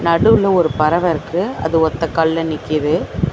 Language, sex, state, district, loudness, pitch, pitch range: Tamil, female, Tamil Nadu, Chennai, -16 LUFS, 165 Hz, 160-175 Hz